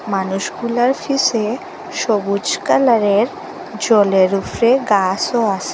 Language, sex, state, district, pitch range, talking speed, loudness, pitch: Bengali, female, Assam, Hailakandi, 195-245 Hz, 85 wpm, -16 LUFS, 220 Hz